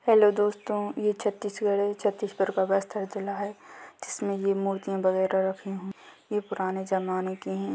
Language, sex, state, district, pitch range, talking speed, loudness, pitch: Hindi, female, Chhattisgarh, Bastar, 190-205 Hz, 160 wpm, -28 LUFS, 195 Hz